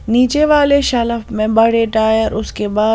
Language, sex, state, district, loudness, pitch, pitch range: Hindi, female, Punjab, Pathankot, -14 LUFS, 230 Hz, 220-250 Hz